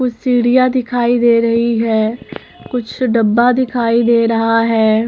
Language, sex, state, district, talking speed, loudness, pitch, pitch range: Hindi, male, Uttarakhand, Tehri Garhwal, 140 wpm, -14 LUFS, 235 Hz, 230-245 Hz